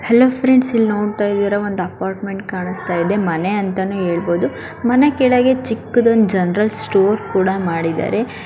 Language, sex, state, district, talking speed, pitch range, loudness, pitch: Kannada, female, Karnataka, Dharwad, 130 wpm, 185-230 Hz, -17 LUFS, 200 Hz